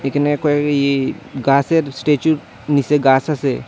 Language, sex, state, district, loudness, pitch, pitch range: Bengali, female, Tripura, Unakoti, -17 LUFS, 145 Hz, 135-150 Hz